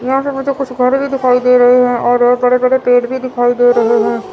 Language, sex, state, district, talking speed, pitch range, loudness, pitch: Hindi, female, Chandigarh, Chandigarh, 265 wpm, 245-260 Hz, -12 LUFS, 250 Hz